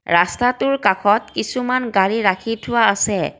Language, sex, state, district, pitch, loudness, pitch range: Assamese, female, Assam, Kamrup Metropolitan, 220 Hz, -18 LUFS, 195-245 Hz